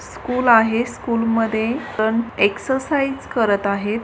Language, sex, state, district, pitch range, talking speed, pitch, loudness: Marathi, female, Maharashtra, Sindhudurg, 220-250 Hz, 90 wpm, 230 Hz, -19 LUFS